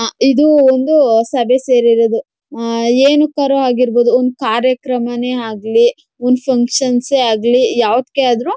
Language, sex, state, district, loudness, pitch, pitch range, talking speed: Kannada, female, Karnataka, Mysore, -13 LUFS, 250 Hz, 240-270 Hz, 110 wpm